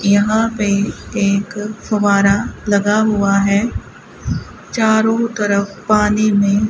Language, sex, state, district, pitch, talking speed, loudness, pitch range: Hindi, female, Rajasthan, Bikaner, 205 Hz, 110 wpm, -16 LUFS, 200-215 Hz